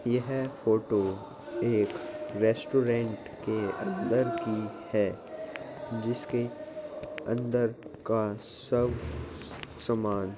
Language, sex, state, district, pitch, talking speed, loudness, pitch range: Hindi, male, Uttar Pradesh, Jyotiba Phule Nagar, 115 Hz, 85 wpm, -31 LUFS, 105-135 Hz